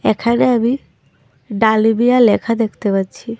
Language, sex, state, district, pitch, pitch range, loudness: Bengali, female, Tripura, Dhalai, 230 Hz, 215-235 Hz, -15 LUFS